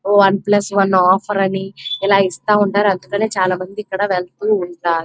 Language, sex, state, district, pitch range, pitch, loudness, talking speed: Telugu, female, Andhra Pradesh, Krishna, 185-205 Hz, 195 Hz, -16 LUFS, 130 wpm